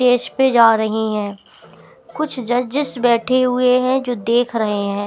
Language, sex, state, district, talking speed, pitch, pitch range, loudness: Hindi, female, Bihar, Patna, 165 wpm, 245 Hz, 220-255 Hz, -17 LUFS